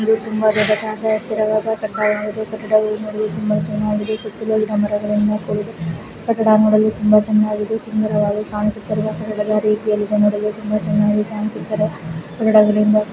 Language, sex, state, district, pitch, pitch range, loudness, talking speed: Kannada, female, Karnataka, Dakshina Kannada, 215 Hz, 210-215 Hz, -18 LUFS, 90 wpm